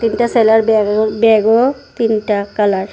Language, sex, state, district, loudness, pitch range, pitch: Bengali, female, Assam, Hailakandi, -13 LUFS, 210-230 Hz, 220 Hz